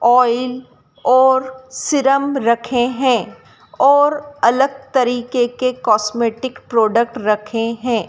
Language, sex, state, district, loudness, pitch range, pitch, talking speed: Hindi, female, Madhya Pradesh, Dhar, -16 LUFS, 235-265 Hz, 250 Hz, 95 wpm